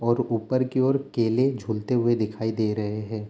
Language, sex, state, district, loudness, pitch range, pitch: Hindi, male, Bihar, Darbhanga, -25 LUFS, 110-130 Hz, 115 Hz